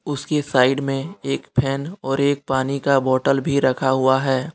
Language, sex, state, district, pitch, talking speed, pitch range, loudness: Hindi, male, Jharkhand, Deoghar, 135 Hz, 185 wpm, 130-140 Hz, -20 LUFS